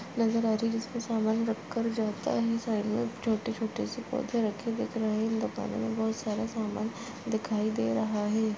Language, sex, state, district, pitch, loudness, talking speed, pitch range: Hindi, female, Goa, North and South Goa, 225 Hz, -31 LUFS, 190 wpm, 215-230 Hz